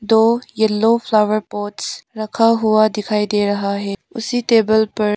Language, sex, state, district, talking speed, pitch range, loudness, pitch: Hindi, female, Arunachal Pradesh, Lower Dibang Valley, 160 wpm, 210-225 Hz, -17 LUFS, 215 Hz